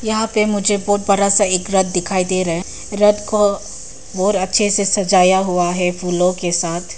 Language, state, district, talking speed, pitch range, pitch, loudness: Hindi, Arunachal Pradesh, Papum Pare, 200 wpm, 180-205 Hz, 190 Hz, -16 LUFS